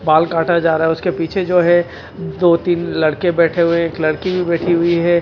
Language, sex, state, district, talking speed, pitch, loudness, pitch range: Hindi, male, Bihar, Kaimur, 230 wpm, 170 Hz, -15 LUFS, 165-175 Hz